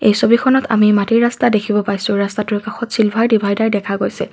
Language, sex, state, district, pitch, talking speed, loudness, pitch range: Assamese, female, Assam, Kamrup Metropolitan, 215 Hz, 180 wpm, -15 LUFS, 205-230 Hz